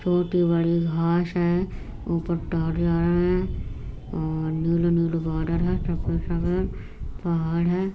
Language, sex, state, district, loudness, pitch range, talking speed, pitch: Hindi, female, Uttar Pradesh, Etah, -25 LUFS, 160-175 Hz, 100 wpm, 170 Hz